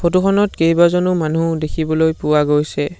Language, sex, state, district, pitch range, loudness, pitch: Assamese, male, Assam, Sonitpur, 155-175 Hz, -16 LUFS, 165 Hz